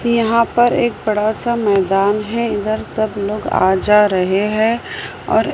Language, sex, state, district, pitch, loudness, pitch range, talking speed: Hindi, female, Maharashtra, Mumbai Suburban, 215 Hz, -16 LUFS, 205-230 Hz, 160 wpm